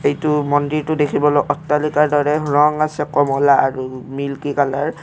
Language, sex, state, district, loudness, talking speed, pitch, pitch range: Assamese, male, Assam, Kamrup Metropolitan, -17 LUFS, 145 wpm, 145 Hz, 140-150 Hz